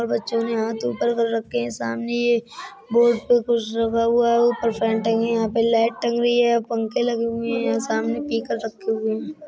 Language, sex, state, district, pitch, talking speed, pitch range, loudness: Bundeli, female, Uttar Pradesh, Budaun, 230 Hz, 215 wpm, 225-235 Hz, -21 LUFS